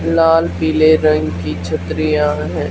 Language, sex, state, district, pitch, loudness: Hindi, female, Haryana, Charkhi Dadri, 150 Hz, -15 LUFS